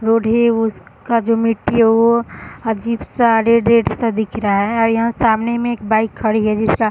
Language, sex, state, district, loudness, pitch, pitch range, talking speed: Hindi, female, Bihar, Sitamarhi, -16 LUFS, 225 Hz, 220-235 Hz, 225 wpm